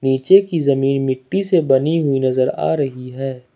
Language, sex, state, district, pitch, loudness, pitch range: Hindi, male, Jharkhand, Ranchi, 135 Hz, -17 LUFS, 130-160 Hz